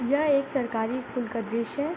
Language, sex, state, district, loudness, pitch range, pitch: Hindi, female, Bihar, Begusarai, -27 LUFS, 230-280 Hz, 250 Hz